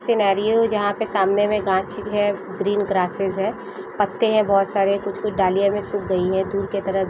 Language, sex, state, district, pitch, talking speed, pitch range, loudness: Hindi, female, Jharkhand, Sahebganj, 200 Hz, 185 wpm, 195-205 Hz, -21 LUFS